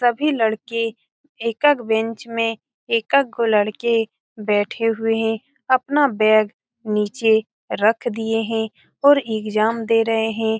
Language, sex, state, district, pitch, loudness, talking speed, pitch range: Hindi, female, Bihar, Saran, 225 Hz, -20 LUFS, 125 wpm, 220-240 Hz